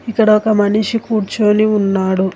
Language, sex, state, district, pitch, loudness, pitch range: Telugu, female, Telangana, Hyderabad, 215 Hz, -14 LUFS, 200-220 Hz